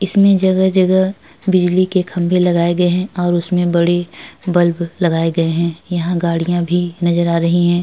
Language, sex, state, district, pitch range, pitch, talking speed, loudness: Hindi, female, Uttar Pradesh, Etah, 170-185 Hz, 175 Hz, 170 wpm, -15 LUFS